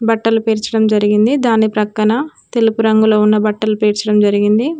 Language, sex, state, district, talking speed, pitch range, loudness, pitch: Telugu, female, Telangana, Mahabubabad, 135 wpm, 210-225 Hz, -14 LUFS, 220 Hz